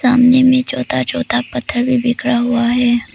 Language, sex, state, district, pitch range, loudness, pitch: Hindi, female, Arunachal Pradesh, Papum Pare, 155-250 Hz, -14 LUFS, 240 Hz